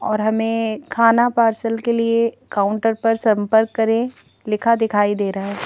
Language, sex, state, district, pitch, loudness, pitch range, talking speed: Hindi, female, Madhya Pradesh, Bhopal, 225 Hz, -18 LUFS, 215-230 Hz, 160 wpm